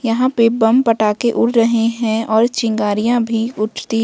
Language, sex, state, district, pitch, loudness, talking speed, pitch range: Hindi, female, Jharkhand, Ranchi, 230 Hz, -16 LUFS, 165 wpm, 220-235 Hz